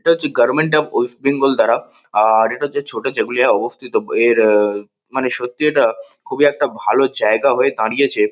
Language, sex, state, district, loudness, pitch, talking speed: Bengali, male, West Bengal, North 24 Parganas, -16 LUFS, 140 Hz, 175 wpm